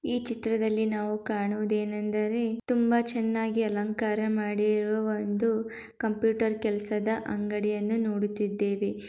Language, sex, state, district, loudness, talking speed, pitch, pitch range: Kannada, female, Karnataka, Gulbarga, -28 LUFS, 85 wpm, 215 Hz, 210-225 Hz